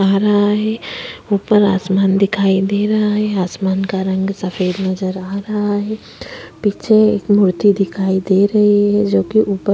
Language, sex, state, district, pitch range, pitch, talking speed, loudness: Hindi, female, Uttar Pradesh, Jyotiba Phule Nagar, 190-205 Hz, 200 Hz, 170 wpm, -15 LUFS